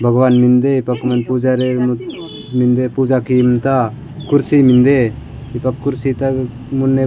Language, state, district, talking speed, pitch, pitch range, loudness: Gondi, Chhattisgarh, Sukma, 145 wpm, 130 Hz, 125-135 Hz, -14 LUFS